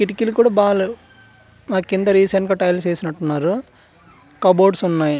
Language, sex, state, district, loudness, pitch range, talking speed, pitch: Telugu, male, Andhra Pradesh, Manyam, -17 LUFS, 165-200 Hz, 160 wpm, 190 Hz